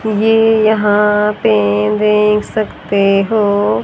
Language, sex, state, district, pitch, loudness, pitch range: Hindi, female, Haryana, Jhajjar, 210 Hz, -12 LUFS, 195-215 Hz